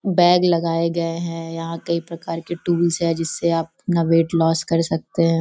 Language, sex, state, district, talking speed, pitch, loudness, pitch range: Hindi, female, Bihar, Sitamarhi, 200 wpm, 165 Hz, -20 LUFS, 165-170 Hz